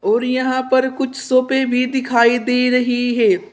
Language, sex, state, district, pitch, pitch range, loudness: Hindi, female, Uttar Pradesh, Saharanpur, 255 Hz, 250-265 Hz, -16 LUFS